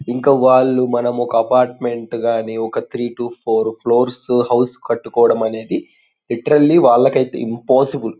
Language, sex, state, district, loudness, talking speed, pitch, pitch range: Telugu, male, Andhra Pradesh, Guntur, -16 LUFS, 125 wpm, 120 Hz, 115-125 Hz